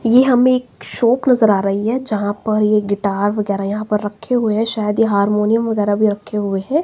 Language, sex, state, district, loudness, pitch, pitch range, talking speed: Hindi, female, Himachal Pradesh, Shimla, -16 LUFS, 215 Hz, 205-230 Hz, 230 wpm